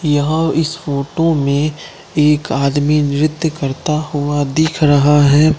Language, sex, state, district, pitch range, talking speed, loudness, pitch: Hindi, male, Bihar, Katihar, 145-155 Hz, 130 wpm, -15 LUFS, 150 Hz